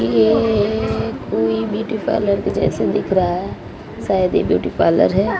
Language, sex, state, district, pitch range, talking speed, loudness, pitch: Hindi, female, Odisha, Malkangiri, 160-220 Hz, 145 wpm, -18 LUFS, 200 Hz